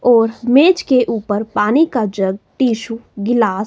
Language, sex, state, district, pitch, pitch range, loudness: Hindi, female, Himachal Pradesh, Shimla, 230 Hz, 210-250 Hz, -15 LUFS